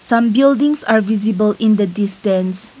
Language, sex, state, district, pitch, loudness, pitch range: English, female, Nagaland, Kohima, 215 Hz, -15 LUFS, 205-230 Hz